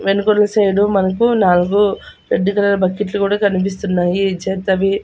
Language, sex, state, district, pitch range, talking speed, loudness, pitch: Telugu, female, Andhra Pradesh, Annamaya, 190-205 Hz, 120 wpm, -16 LUFS, 195 Hz